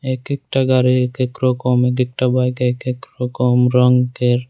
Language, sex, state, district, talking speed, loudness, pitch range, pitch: Bengali, male, Tripura, West Tripura, 175 wpm, -17 LUFS, 125-130 Hz, 125 Hz